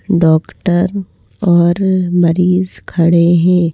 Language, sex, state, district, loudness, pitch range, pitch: Hindi, female, Madhya Pradesh, Bhopal, -13 LUFS, 170-185 Hz, 175 Hz